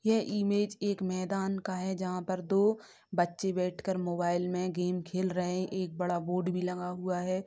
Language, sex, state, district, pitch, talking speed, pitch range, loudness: Hindi, female, Bihar, Sitamarhi, 185 Hz, 195 wpm, 180-195 Hz, -32 LUFS